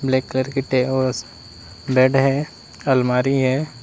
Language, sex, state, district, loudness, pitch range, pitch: Hindi, male, Uttar Pradesh, Saharanpur, -19 LUFS, 125-135 Hz, 130 Hz